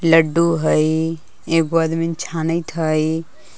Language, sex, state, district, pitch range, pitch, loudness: Magahi, female, Jharkhand, Palamu, 160-165 Hz, 165 Hz, -19 LUFS